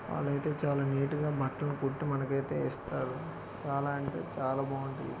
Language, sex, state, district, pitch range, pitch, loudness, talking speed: Telugu, male, Andhra Pradesh, Guntur, 135-145 Hz, 140 Hz, -34 LUFS, 255 wpm